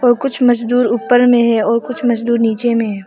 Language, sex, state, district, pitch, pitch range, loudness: Hindi, female, Arunachal Pradesh, Papum Pare, 240 Hz, 230-245 Hz, -14 LUFS